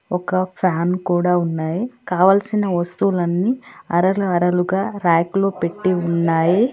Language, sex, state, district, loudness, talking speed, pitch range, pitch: Telugu, female, Telangana, Hyderabad, -19 LUFS, 100 wpm, 175-195 Hz, 180 Hz